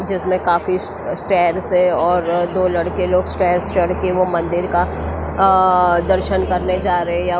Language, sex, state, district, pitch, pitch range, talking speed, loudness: Hindi, female, Maharashtra, Mumbai Suburban, 180 Hz, 175-185 Hz, 160 wpm, -17 LUFS